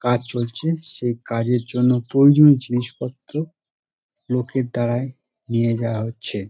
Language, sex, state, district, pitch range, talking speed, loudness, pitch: Bengali, male, West Bengal, Dakshin Dinajpur, 115-130 Hz, 120 wpm, -20 LUFS, 125 Hz